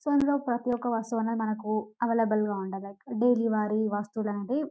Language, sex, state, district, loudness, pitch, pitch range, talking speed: Telugu, female, Telangana, Karimnagar, -29 LUFS, 225 Hz, 210-240 Hz, 165 wpm